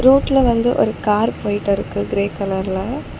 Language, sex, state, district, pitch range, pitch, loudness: Tamil, female, Tamil Nadu, Chennai, 200-250 Hz, 210 Hz, -18 LUFS